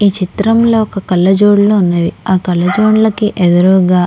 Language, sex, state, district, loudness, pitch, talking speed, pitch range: Telugu, female, Andhra Pradesh, Krishna, -11 LUFS, 195 Hz, 145 wpm, 180-210 Hz